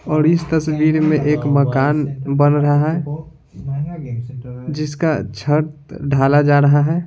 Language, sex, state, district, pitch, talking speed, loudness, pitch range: Hindi, male, Bihar, Patna, 145 Hz, 125 wpm, -17 LUFS, 140-155 Hz